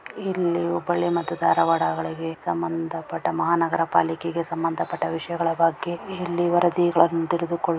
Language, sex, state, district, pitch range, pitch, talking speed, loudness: Kannada, female, Karnataka, Dharwad, 165-175 Hz, 170 Hz, 100 wpm, -24 LUFS